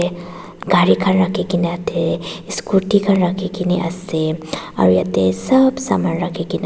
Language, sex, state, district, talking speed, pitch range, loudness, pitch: Nagamese, female, Nagaland, Dimapur, 125 wpm, 165-190 Hz, -17 LUFS, 180 Hz